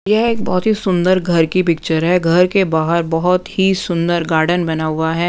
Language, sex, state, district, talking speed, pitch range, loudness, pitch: Hindi, female, Punjab, Pathankot, 215 wpm, 165-185 Hz, -15 LUFS, 175 Hz